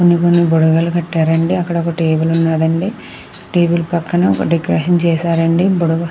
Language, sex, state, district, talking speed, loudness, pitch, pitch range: Telugu, female, Andhra Pradesh, Krishna, 155 wpm, -14 LUFS, 170 Hz, 165-175 Hz